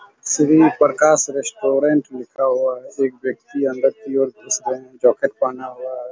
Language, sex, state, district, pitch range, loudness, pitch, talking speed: Hindi, male, Chhattisgarh, Raigarh, 130-150 Hz, -18 LUFS, 135 Hz, 175 wpm